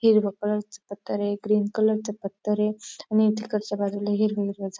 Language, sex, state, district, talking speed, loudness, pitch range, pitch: Marathi, female, Maharashtra, Dhule, 200 wpm, -25 LUFS, 205-215 Hz, 210 Hz